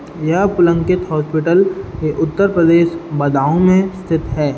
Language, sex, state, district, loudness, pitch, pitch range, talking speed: Hindi, male, Uttar Pradesh, Budaun, -15 LUFS, 170 Hz, 155-180 Hz, 120 wpm